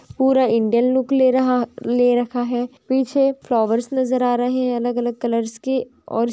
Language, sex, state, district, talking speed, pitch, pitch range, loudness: Hindi, female, Chhattisgarh, Sukma, 170 wpm, 245 Hz, 240-260 Hz, -19 LUFS